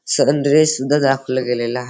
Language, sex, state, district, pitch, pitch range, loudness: Marathi, male, Maharashtra, Dhule, 135 Hz, 125-145 Hz, -16 LUFS